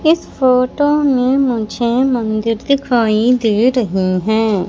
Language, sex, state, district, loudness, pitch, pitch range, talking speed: Hindi, female, Madhya Pradesh, Katni, -15 LUFS, 245 Hz, 220-260 Hz, 115 wpm